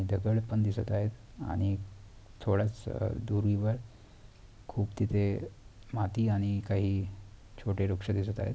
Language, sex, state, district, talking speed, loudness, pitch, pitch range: Marathi, male, Maharashtra, Pune, 110 wpm, -32 LUFS, 105 Hz, 100-110 Hz